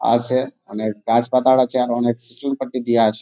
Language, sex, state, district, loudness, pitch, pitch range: Bengali, male, West Bengal, Jalpaiguri, -19 LUFS, 120 Hz, 115-130 Hz